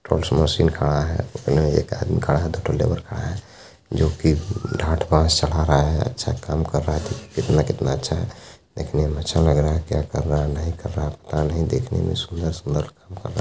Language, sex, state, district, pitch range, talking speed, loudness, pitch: Maithili, male, Bihar, Begusarai, 75-95 Hz, 205 wpm, -22 LUFS, 80 Hz